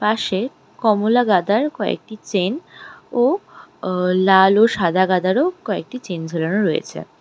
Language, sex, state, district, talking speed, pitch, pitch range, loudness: Bengali, female, West Bengal, Darjeeling, 125 wpm, 210 Hz, 185-240 Hz, -19 LUFS